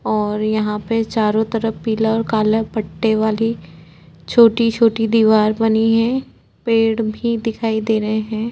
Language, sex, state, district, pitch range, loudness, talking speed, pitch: Hindi, female, Uttarakhand, Tehri Garhwal, 215-225 Hz, -17 LUFS, 135 wpm, 220 Hz